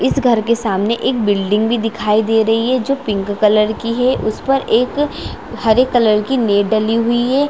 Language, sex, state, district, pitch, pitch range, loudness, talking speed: Hindi, female, Chhattisgarh, Raigarh, 225 Hz, 215-250 Hz, -15 LUFS, 210 wpm